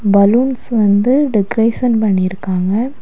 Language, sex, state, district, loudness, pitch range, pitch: Tamil, female, Tamil Nadu, Kanyakumari, -14 LUFS, 200-245 Hz, 220 Hz